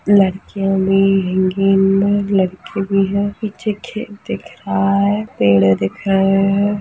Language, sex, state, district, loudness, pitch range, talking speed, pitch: Hindi, female, Chhattisgarh, Rajnandgaon, -16 LUFS, 190-205 Hz, 140 wpm, 195 Hz